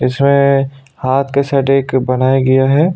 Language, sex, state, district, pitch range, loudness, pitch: Hindi, male, Chhattisgarh, Sukma, 130-140 Hz, -13 LUFS, 135 Hz